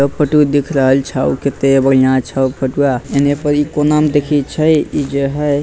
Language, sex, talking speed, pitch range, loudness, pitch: Bhojpuri, male, 205 wpm, 135-150 Hz, -14 LUFS, 140 Hz